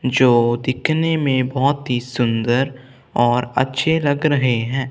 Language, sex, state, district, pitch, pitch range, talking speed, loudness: Hindi, male, Punjab, Kapurthala, 130 Hz, 120-140 Hz, 135 wpm, -18 LUFS